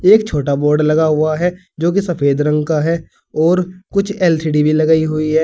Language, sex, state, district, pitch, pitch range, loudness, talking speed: Hindi, male, Uttar Pradesh, Saharanpur, 160 Hz, 150-180 Hz, -15 LUFS, 210 wpm